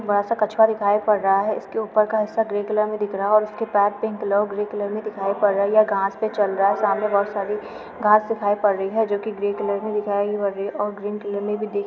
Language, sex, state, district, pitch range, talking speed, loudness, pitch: Hindi, female, Uttar Pradesh, Budaun, 200-215 Hz, 285 wpm, -21 LUFS, 205 Hz